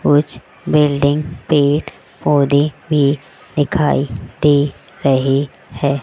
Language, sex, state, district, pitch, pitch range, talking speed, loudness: Hindi, female, Rajasthan, Jaipur, 145 Hz, 140-150 Hz, 90 wpm, -16 LUFS